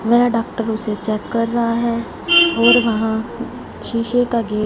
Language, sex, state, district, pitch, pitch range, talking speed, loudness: Hindi, female, Punjab, Fazilka, 230 Hz, 220-235 Hz, 170 wpm, -17 LUFS